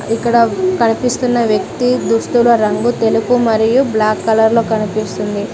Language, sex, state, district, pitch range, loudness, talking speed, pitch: Telugu, female, Telangana, Mahabubabad, 215-240 Hz, -14 LUFS, 120 wpm, 225 Hz